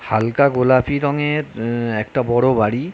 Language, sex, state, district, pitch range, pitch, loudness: Bengali, male, West Bengal, North 24 Parganas, 115-140 Hz, 130 Hz, -18 LUFS